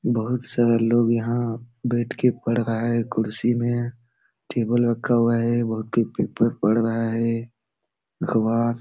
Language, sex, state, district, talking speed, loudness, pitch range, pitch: Hindi, male, Bihar, Supaul, 150 wpm, -23 LUFS, 115-120 Hz, 115 Hz